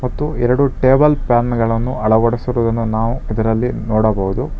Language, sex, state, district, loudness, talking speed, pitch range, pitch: Kannada, male, Karnataka, Bangalore, -16 LUFS, 115 wpm, 110-125 Hz, 120 Hz